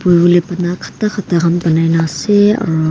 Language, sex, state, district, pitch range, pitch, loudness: Nagamese, female, Nagaland, Kohima, 165-200 Hz, 175 Hz, -13 LUFS